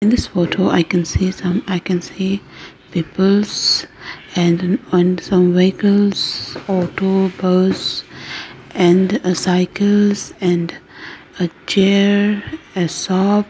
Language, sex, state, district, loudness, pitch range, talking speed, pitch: English, female, Arunachal Pradesh, Lower Dibang Valley, -16 LUFS, 180-200 Hz, 110 wpm, 185 Hz